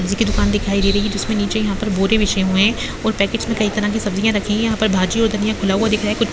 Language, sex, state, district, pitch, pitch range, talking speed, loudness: Hindi, female, Bihar, Gopalganj, 210 Hz, 200-220 Hz, 350 wpm, -18 LUFS